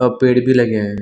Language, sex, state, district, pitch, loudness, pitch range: Hindi, male, Chhattisgarh, Bilaspur, 125 Hz, -14 LUFS, 110-125 Hz